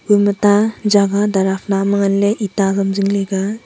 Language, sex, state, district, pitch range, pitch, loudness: Wancho, female, Arunachal Pradesh, Longding, 195-205 Hz, 200 Hz, -16 LUFS